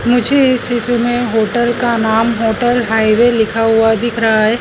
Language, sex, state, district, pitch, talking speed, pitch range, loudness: Hindi, female, Madhya Pradesh, Dhar, 235 Hz, 195 wpm, 225-240 Hz, -13 LUFS